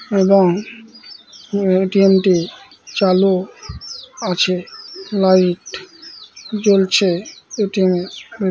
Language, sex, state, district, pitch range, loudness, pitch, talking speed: Bengali, male, West Bengal, Malda, 185-250 Hz, -16 LUFS, 195 Hz, 70 wpm